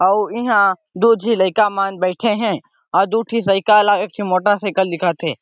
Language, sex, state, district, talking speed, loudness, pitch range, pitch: Chhattisgarhi, male, Chhattisgarh, Sarguja, 200 wpm, -17 LUFS, 190-220 Hz, 200 Hz